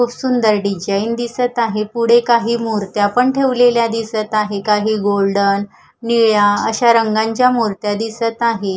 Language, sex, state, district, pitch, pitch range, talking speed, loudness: Marathi, female, Maharashtra, Gondia, 225 Hz, 210-235 Hz, 135 wpm, -15 LUFS